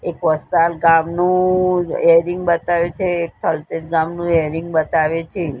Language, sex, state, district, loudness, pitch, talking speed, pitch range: Gujarati, female, Gujarat, Gandhinagar, -17 LUFS, 170 Hz, 95 wpm, 160-175 Hz